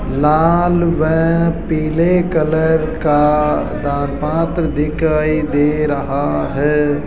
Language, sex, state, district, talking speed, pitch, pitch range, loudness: Hindi, male, Rajasthan, Jaipur, 95 wpm, 155 Hz, 150-165 Hz, -15 LUFS